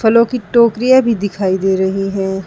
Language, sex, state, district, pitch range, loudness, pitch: Hindi, female, Uttar Pradesh, Saharanpur, 195-235 Hz, -14 LUFS, 200 Hz